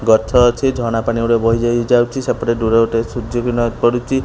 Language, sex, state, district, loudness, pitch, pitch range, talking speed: Odia, male, Odisha, Khordha, -16 LUFS, 120 Hz, 115-120 Hz, 200 wpm